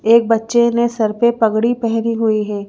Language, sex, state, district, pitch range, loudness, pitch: Hindi, female, Madhya Pradesh, Bhopal, 220-235 Hz, -15 LUFS, 230 Hz